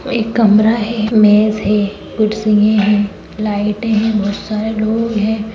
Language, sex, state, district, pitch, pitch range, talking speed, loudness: Hindi, female, Uttarakhand, Tehri Garhwal, 215 Hz, 210-220 Hz, 150 wpm, -14 LUFS